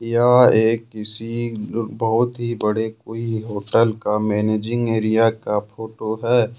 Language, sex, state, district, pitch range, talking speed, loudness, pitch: Hindi, male, Jharkhand, Ranchi, 110-115 Hz, 125 wpm, -20 LUFS, 110 Hz